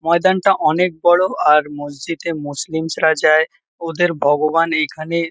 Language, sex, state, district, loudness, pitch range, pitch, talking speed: Bengali, male, West Bengal, Kolkata, -16 LUFS, 155-170 Hz, 160 Hz, 115 wpm